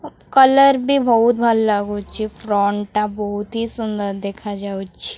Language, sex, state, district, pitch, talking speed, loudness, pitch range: Odia, female, Odisha, Khordha, 210 Hz, 140 wpm, -18 LUFS, 205-230 Hz